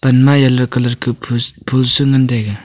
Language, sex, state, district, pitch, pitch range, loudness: Wancho, male, Arunachal Pradesh, Longding, 125 Hz, 120-130 Hz, -14 LUFS